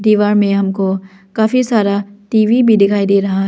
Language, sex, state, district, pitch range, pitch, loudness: Hindi, female, Arunachal Pradesh, Lower Dibang Valley, 195-220 Hz, 205 Hz, -14 LUFS